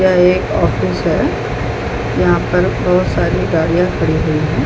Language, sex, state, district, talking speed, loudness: Hindi, female, Chhattisgarh, Balrampur, 165 wpm, -15 LUFS